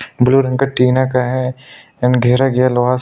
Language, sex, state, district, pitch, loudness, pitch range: Hindi, male, Chhattisgarh, Sukma, 125 Hz, -14 LUFS, 125-130 Hz